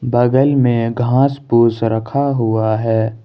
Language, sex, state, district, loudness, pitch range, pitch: Hindi, male, Jharkhand, Ranchi, -15 LUFS, 115-130 Hz, 115 Hz